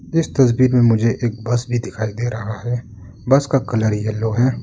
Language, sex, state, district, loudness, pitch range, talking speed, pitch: Hindi, male, Arunachal Pradesh, Lower Dibang Valley, -18 LUFS, 110-125 Hz, 205 wpm, 120 Hz